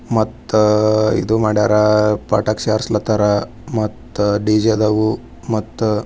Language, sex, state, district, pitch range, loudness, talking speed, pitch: Kannada, male, Karnataka, Bijapur, 105-110 Hz, -16 LUFS, 60 wpm, 110 Hz